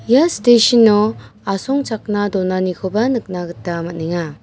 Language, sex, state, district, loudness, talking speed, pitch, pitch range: Garo, female, Meghalaya, West Garo Hills, -16 LUFS, 95 wpm, 205 Hz, 180-235 Hz